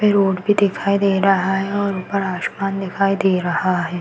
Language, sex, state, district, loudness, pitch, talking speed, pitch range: Hindi, female, Uttar Pradesh, Varanasi, -19 LUFS, 195 Hz, 195 wpm, 185-200 Hz